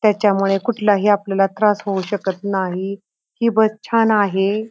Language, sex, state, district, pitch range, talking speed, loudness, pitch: Marathi, female, Maharashtra, Pune, 195-215 Hz, 140 wpm, -18 LUFS, 205 Hz